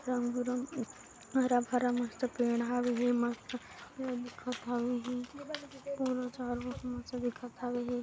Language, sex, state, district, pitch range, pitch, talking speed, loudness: Hindi, female, Chhattisgarh, Kabirdham, 245-250 Hz, 245 Hz, 140 wpm, -35 LUFS